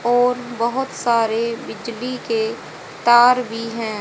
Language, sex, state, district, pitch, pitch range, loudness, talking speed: Hindi, female, Haryana, Jhajjar, 235 Hz, 230-245 Hz, -19 LUFS, 120 wpm